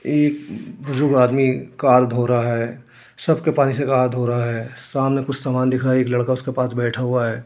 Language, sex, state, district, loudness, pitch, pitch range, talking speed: Hindi, male, Uttar Pradesh, Jyotiba Phule Nagar, -19 LUFS, 130 Hz, 120-135 Hz, 225 wpm